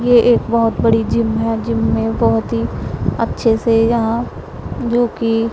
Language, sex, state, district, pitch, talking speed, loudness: Hindi, female, Punjab, Pathankot, 225 Hz, 165 wpm, -16 LUFS